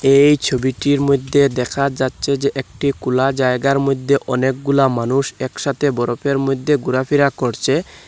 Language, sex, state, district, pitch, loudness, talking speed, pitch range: Bengali, male, Assam, Hailakandi, 135 Hz, -17 LUFS, 135 wpm, 130-140 Hz